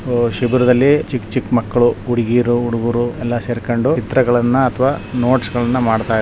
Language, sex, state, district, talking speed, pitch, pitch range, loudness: Kannada, male, Karnataka, Shimoga, 145 wpm, 120 Hz, 120-125 Hz, -16 LUFS